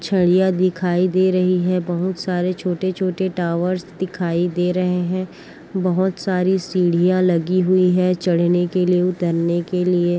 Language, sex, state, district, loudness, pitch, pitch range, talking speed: Chhattisgarhi, female, Chhattisgarh, Korba, -19 LUFS, 180 Hz, 175-185 Hz, 145 wpm